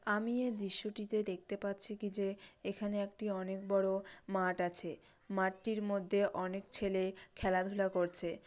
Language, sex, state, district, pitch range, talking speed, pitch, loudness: Bengali, female, West Bengal, Dakshin Dinajpur, 190-205 Hz, 155 wpm, 195 Hz, -37 LUFS